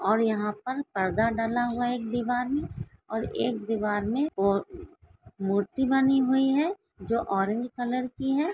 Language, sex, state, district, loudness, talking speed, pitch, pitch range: Hindi, female, Maharashtra, Solapur, -27 LUFS, 170 wpm, 240 Hz, 215-265 Hz